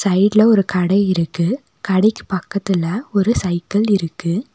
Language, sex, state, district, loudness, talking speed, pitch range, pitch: Tamil, female, Tamil Nadu, Nilgiris, -17 LUFS, 120 wpm, 180-210 Hz, 195 Hz